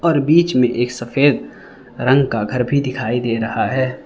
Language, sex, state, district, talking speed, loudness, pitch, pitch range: Hindi, male, Arunachal Pradesh, Lower Dibang Valley, 190 wpm, -17 LUFS, 130 Hz, 120-140 Hz